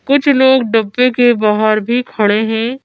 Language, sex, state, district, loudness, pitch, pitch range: Hindi, female, Madhya Pradesh, Bhopal, -12 LUFS, 240 Hz, 215-260 Hz